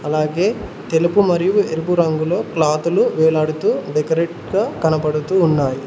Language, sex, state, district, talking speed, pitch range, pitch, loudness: Telugu, male, Telangana, Mahabubabad, 110 wpm, 155-170 Hz, 160 Hz, -17 LUFS